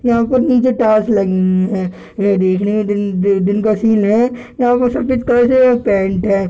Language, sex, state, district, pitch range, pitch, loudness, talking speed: Hindi, male, Bihar, Darbhanga, 195-245 Hz, 215 Hz, -14 LUFS, 210 wpm